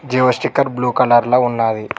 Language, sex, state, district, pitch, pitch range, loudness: Telugu, male, Telangana, Mahabubabad, 125 Hz, 120-125 Hz, -15 LUFS